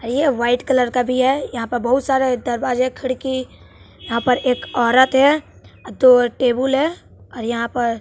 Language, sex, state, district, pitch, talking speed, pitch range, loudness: Hindi, male, Bihar, West Champaran, 255 Hz, 170 wpm, 240-265 Hz, -18 LUFS